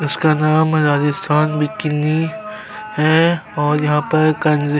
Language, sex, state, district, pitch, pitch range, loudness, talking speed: Hindi, male, Chhattisgarh, Sukma, 155 Hz, 150-160 Hz, -16 LUFS, 110 wpm